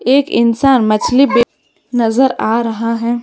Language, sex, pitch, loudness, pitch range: Hindi, female, 240 Hz, -13 LUFS, 230-260 Hz